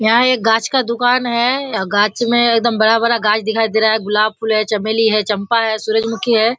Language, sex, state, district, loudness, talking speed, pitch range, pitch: Hindi, female, Bihar, Kishanganj, -15 LUFS, 220 wpm, 220-235 Hz, 225 Hz